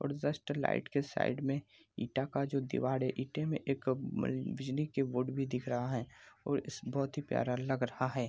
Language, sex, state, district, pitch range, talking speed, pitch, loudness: Hindi, male, Bihar, Araria, 125-140 Hz, 205 wpm, 130 Hz, -36 LUFS